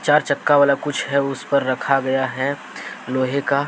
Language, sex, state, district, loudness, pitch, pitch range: Hindi, male, Jharkhand, Deoghar, -20 LUFS, 140 Hz, 130-140 Hz